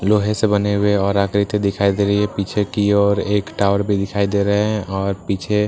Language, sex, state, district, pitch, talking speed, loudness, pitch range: Hindi, male, Bihar, Katihar, 100 Hz, 245 wpm, -18 LUFS, 100-105 Hz